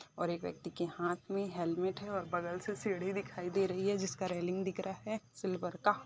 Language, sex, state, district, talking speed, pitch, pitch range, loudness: Hindi, female, Andhra Pradesh, Chittoor, 230 wpm, 190 Hz, 175-195 Hz, -38 LUFS